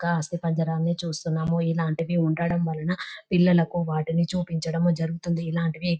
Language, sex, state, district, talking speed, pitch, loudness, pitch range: Telugu, female, Telangana, Nalgonda, 130 wpm, 170 Hz, -25 LUFS, 165-170 Hz